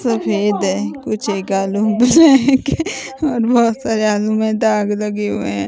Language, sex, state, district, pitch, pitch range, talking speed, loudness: Hindi, female, Himachal Pradesh, Shimla, 215 Hz, 205-240 Hz, 125 wpm, -16 LUFS